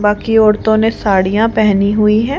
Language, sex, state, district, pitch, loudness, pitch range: Hindi, female, Haryana, Charkhi Dadri, 215 Hz, -12 LUFS, 205-225 Hz